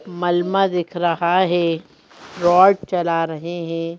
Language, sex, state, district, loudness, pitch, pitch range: Hindi, female, Madhya Pradesh, Bhopal, -19 LUFS, 175 Hz, 170-180 Hz